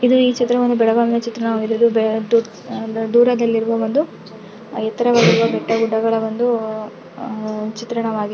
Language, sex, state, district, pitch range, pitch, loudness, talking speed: Kannada, female, Karnataka, Belgaum, 220-235 Hz, 230 Hz, -18 LUFS, 85 wpm